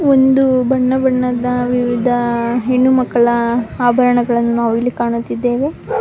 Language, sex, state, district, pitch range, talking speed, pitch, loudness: Kannada, female, Karnataka, Bangalore, 240-255 Hz, 90 wpm, 245 Hz, -15 LUFS